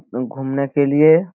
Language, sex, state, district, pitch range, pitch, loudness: Hindi, male, Bihar, Jahanabad, 135-155 Hz, 140 Hz, -17 LUFS